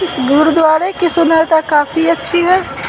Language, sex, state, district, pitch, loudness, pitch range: Hindi, female, Bihar, Patna, 325 Hz, -12 LUFS, 315-345 Hz